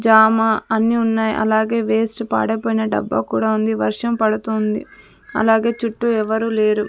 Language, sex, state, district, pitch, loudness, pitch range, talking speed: Telugu, female, Andhra Pradesh, Sri Satya Sai, 220 Hz, -18 LUFS, 215-225 Hz, 130 wpm